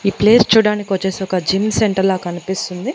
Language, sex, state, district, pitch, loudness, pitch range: Telugu, female, Andhra Pradesh, Annamaya, 190 Hz, -16 LUFS, 185-210 Hz